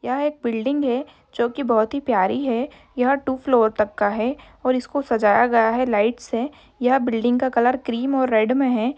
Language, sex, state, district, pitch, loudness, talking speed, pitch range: Hindi, female, Bihar, Sitamarhi, 245 Hz, -21 LUFS, 215 wpm, 230-265 Hz